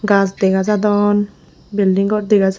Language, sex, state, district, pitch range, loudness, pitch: Chakma, female, Tripura, Unakoti, 195-210 Hz, -16 LUFS, 205 Hz